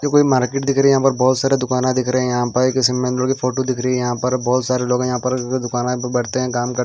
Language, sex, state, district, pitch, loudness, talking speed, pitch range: Hindi, male, Himachal Pradesh, Shimla, 125 Hz, -18 LUFS, 315 wpm, 125-130 Hz